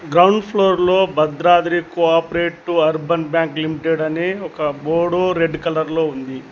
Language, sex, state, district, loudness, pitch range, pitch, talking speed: Telugu, male, Telangana, Mahabubabad, -17 LUFS, 155-175 Hz, 165 Hz, 145 wpm